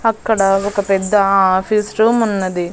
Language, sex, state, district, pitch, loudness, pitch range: Telugu, female, Andhra Pradesh, Annamaya, 200 Hz, -15 LUFS, 195-220 Hz